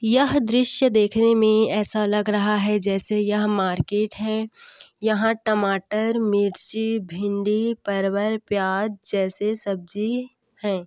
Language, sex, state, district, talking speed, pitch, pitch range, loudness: Hindi, female, Chhattisgarh, Korba, 115 wpm, 210 Hz, 200-225 Hz, -21 LUFS